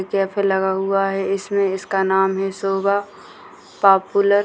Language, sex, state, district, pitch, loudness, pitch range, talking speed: Hindi, female, Bihar, Purnia, 195 Hz, -19 LUFS, 190-200 Hz, 150 wpm